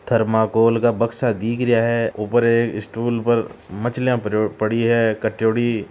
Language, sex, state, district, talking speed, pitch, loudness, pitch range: Marwari, male, Rajasthan, Churu, 140 wpm, 115 Hz, -19 LUFS, 110-120 Hz